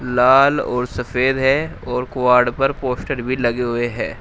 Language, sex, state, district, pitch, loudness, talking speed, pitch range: Hindi, male, Uttar Pradesh, Shamli, 125 Hz, -18 LUFS, 170 wpm, 125-135 Hz